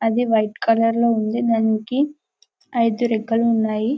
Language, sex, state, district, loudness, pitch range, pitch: Telugu, male, Telangana, Karimnagar, -20 LUFS, 220-240 Hz, 230 Hz